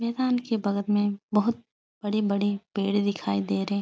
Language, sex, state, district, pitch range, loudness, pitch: Hindi, female, Uttar Pradesh, Etah, 200-225 Hz, -27 LUFS, 205 Hz